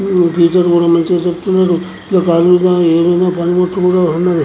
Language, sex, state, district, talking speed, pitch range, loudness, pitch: Telugu, male, Andhra Pradesh, Anantapur, 65 wpm, 170-180 Hz, -12 LUFS, 175 Hz